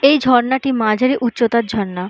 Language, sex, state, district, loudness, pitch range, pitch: Bengali, female, West Bengal, Purulia, -16 LUFS, 220-260 Hz, 240 Hz